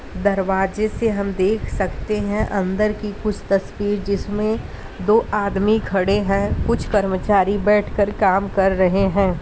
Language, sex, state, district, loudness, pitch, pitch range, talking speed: Hindi, female, Uttar Pradesh, Ghazipur, -20 LUFS, 200 Hz, 195-210 Hz, 145 wpm